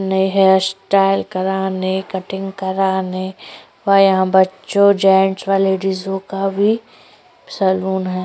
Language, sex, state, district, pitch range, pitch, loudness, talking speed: Hindi, female, Maharashtra, Chandrapur, 190-195 Hz, 190 Hz, -16 LUFS, 110 wpm